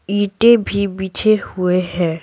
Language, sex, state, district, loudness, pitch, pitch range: Hindi, female, Bihar, Patna, -16 LUFS, 190 Hz, 180-205 Hz